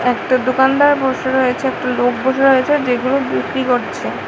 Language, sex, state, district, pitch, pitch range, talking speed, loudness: Bengali, female, Tripura, West Tripura, 260 Hz, 250-265 Hz, 155 wpm, -15 LUFS